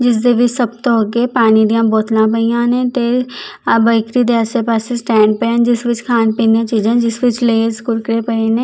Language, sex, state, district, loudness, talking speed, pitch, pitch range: Punjabi, female, Chandigarh, Chandigarh, -14 LUFS, 215 wpm, 230 Hz, 225-240 Hz